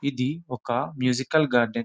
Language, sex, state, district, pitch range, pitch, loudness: Telugu, male, Telangana, Nalgonda, 120-140 Hz, 125 Hz, -25 LUFS